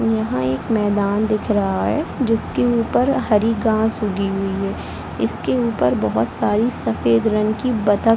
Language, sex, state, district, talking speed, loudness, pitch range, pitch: Hindi, female, Chhattisgarh, Bilaspur, 155 wpm, -19 LUFS, 200-225 Hz, 215 Hz